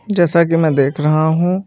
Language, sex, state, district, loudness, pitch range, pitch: Hindi, male, Maharashtra, Mumbai Suburban, -14 LUFS, 155-175 Hz, 165 Hz